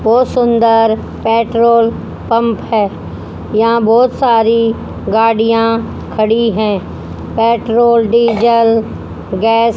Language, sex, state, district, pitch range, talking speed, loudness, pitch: Hindi, female, Haryana, Rohtak, 220-230 Hz, 90 wpm, -12 LUFS, 230 Hz